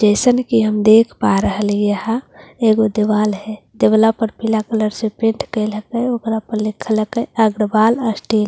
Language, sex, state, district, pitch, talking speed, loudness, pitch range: Hindi, female, Bihar, Katihar, 220 Hz, 125 wpm, -16 LUFS, 210-225 Hz